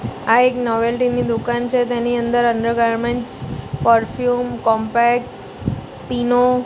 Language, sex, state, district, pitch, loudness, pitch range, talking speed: Gujarati, female, Gujarat, Gandhinagar, 240 Hz, -18 LUFS, 230-245 Hz, 115 wpm